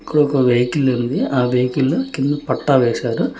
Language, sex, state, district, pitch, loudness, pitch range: Telugu, male, Telangana, Hyderabad, 135 Hz, -17 LUFS, 125-140 Hz